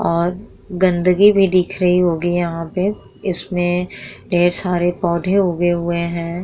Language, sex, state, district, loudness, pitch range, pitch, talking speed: Hindi, female, Bihar, Vaishali, -17 LUFS, 170-185 Hz, 175 Hz, 140 wpm